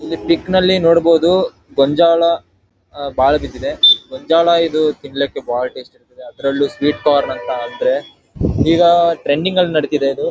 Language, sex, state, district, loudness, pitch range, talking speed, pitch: Kannada, male, Karnataka, Dharwad, -15 LUFS, 140-170 Hz, 130 wpm, 160 Hz